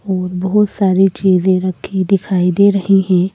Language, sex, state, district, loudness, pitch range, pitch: Hindi, female, Madhya Pradesh, Bhopal, -14 LUFS, 185-195 Hz, 190 Hz